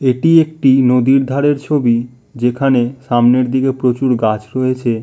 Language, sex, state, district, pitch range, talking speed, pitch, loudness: Bengali, male, West Bengal, Malda, 120-135 Hz, 130 wpm, 130 Hz, -14 LUFS